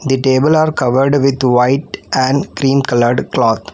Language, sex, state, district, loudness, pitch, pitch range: English, female, Telangana, Hyderabad, -13 LUFS, 135 Hz, 130-140 Hz